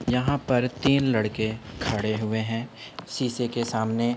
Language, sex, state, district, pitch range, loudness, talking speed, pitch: Hindi, male, Uttar Pradesh, Budaun, 110-125 Hz, -26 LUFS, 145 wpm, 120 Hz